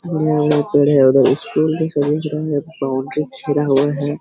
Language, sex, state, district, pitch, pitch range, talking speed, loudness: Hindi, male, Jharkhand, Sahebganj, 145 Hz, 140-155 Hz, 85 wpm, -17 LUFS